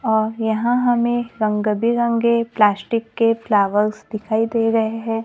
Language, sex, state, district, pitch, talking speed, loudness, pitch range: Hindi, female, Maharashtra, Gondia, 225 Hz, 135 wpm, -19 LUFS, 215-235 Hz